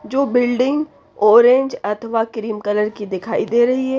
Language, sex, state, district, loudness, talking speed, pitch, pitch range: Hindi, female, Haryana, Rohtak, -17 LUFS, 165 wpm, 235 Hz, 215-260 Hz